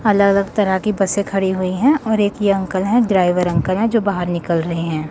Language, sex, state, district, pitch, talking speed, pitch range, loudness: Hindi, female, Chandigarh, Chandigarh, 195 Hz, 245 wpm, 180-205 Hz, -17 LUFS